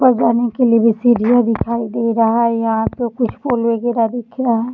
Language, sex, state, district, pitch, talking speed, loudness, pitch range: Hindi, female, Bihar, Darbhanga, 235 Hz, 230 wpm, -16 LUFS, 230-240 Hz